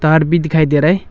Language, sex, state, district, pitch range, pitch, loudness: Hindi, male, Arunachal Pradesh, Longding, 155-170 Hz, 160 Hz, -13 LUFS